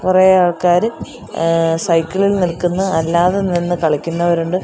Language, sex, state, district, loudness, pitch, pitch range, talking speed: Malayalam, female, Kerala, Kollam, -15 LUFS, 175 Hz, 165-185 Hz, 115 wpm